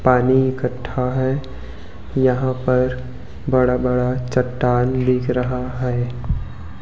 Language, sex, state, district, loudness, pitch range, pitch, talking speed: Hindi, male, Chhattisgarh, Raipur, -20 LUFS, 125-130 Hz, 125 Hz, 95 wpm